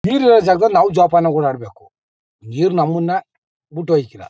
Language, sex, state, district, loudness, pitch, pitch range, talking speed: Kannada, male, Karnataka, Mysore, -15 LUFS, 170 Hz, 150-190 Hz, 125 wpm